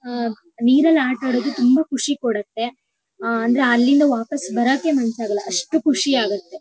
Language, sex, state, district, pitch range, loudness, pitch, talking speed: Kannada, female, Karnataka, Shimoga, 230-285 Hz, -19 LUFS, 250 Hz, 165 wpm